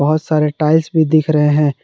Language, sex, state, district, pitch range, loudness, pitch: Hindi, male, Jharkhand, Palamu, 150-155 Hz, -14 LUFS, 155 Hz